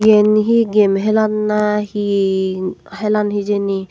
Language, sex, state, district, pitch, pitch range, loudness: Chakma, female, Tripura, Dhalai, 210 Hz, 200-215 Hz, -16 LUFS